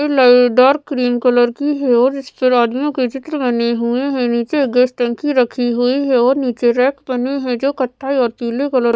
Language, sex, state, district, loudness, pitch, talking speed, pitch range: Hindi, female, Maharashtra, Mumbai Suburban, -15 LUFS, 255 Hz, 205 wpm, 245-275 Hz